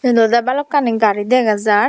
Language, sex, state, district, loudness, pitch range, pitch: Chakma, female, Tripura, Dhalai, -15 LUFS, 215-255 Hz, 230 Hz